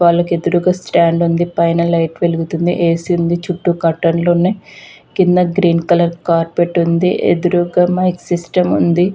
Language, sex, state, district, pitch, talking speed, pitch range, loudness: Telugu, female, Andhra Pradesh, Visakhapatnam, 175 Hz, 160 wpm, 170-180 Hz, -14 LUFS